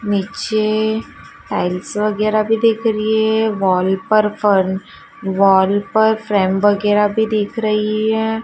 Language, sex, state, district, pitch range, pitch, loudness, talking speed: Hindi, female, Madhya Pradesh, Dhar, 200-220 Hz, 215 Hz, -16 LUFS, 130 wpm